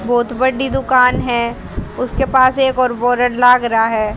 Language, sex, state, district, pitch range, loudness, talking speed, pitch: Hindi, female, Haryana, Jhajjar, 240-260 Hz, -14 LUFS, 170 wpm, 245 Hz